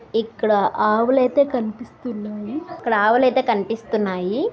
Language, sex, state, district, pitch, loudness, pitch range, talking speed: Telugu, female, Telangana, Karimnagar, 230 Hz, -20 LUFS, 215-255 Hz, 105 wpm